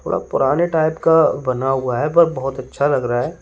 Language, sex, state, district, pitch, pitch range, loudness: Hindi, male, Uttar Pradesh, Lalitpur, 145 Hz, 130-165 Hz, -17 LUFS